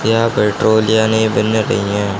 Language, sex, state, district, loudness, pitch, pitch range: Hindi, male, Haryana, Charkhi Dadri, -14 LUFS, 110 Hz, 105-110 Hz